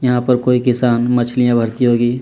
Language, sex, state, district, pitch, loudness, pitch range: Hindi, male, Chhattisgarh, Kabirdham, 125 Hz, -15 LUFS, 120-125 Hz